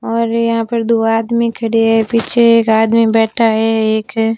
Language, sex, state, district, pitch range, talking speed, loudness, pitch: Hindi, female, Rajasthan, Barmer, 225-230 Hz, 180 wpm, -13 LUFS, 225 Hz